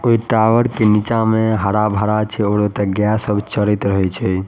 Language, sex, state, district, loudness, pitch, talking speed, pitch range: Maithili, male, Bihar, Madhepura, -16 LUFS, 105 Hz, 175 wpm, 105-110 Hz